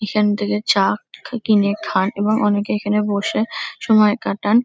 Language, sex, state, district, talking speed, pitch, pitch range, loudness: Bengali, female, West Bengal, Kolkata, 155 wpm, 210 Hz, 205-215 Hz, -18 LUFS